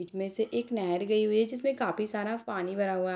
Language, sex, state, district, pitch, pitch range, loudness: Hindi, female, Bihar, Sitamarhi, 215 Hz, 190-225 Hz, -30 LUFS